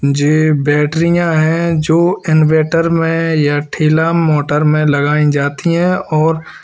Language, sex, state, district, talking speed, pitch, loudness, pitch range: Hindi, male, Uttar Pradesh, Lalitpur, 135 wpm, 155 Hz, -13 LUFS, 150-165 Hz